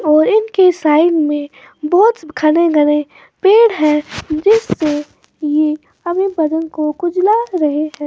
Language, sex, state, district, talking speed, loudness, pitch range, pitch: Hindi, female, Maharashtra, Washim, 125 wpm, -14 LUFS, 300-370 Hz, 310 Hz